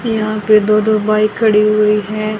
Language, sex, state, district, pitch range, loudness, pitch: Hindi, female, Haryana, Rohtak, 210-215 Hz, -13 LUFS, 215 Hz